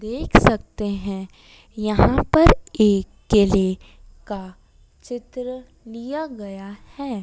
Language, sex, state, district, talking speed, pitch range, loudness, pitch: Hindi, female, Madhya Pradesh, Dhar, 100 wpm, 200-245 Hz, -20 LUFS, 215 Hz